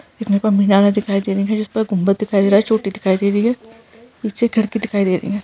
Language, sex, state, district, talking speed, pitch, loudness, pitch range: Hindi, female, Rajasthan, Nagaur, 265 wpm, 205 Hz, -17 LUFS, 195-220 Hz